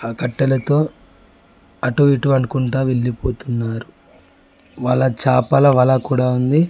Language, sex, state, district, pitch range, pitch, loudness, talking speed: Telugu, male, Telangana, Mahabubabad, 125-135 Hz, 130 Hz, -17 LUFS, 100 wpm